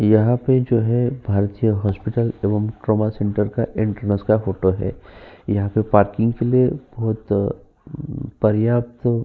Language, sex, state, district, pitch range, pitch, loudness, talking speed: Hindi, male, Uttar Pradesh, Jyotiba Phule Nagar, 100-120 Hz, 110 Hz, -20 LUFS, 130 wpm